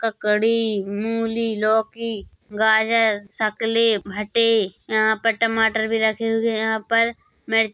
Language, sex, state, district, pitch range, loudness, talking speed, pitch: Hindi, female, Chhattisgarh, Korba, 215-225 Hz, -20 LUFS, 125 wpm, 220 Hz